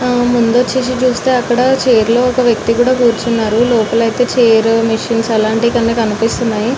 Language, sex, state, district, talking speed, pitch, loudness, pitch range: Telugu, female, Telangana, Nalgonda, 140 wpm, 235 Hz, -12 LUFS, 225-250 Hz